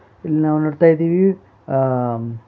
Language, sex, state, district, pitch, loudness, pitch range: Kannada, male, Karnataka, Bellary, 155 Hz, -17 LUFS, 120-165 Hz